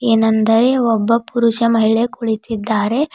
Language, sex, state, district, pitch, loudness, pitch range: Kannada, female, Karnataka, Bidar, 230 Hz, -15 LUFS, 220-235 Hz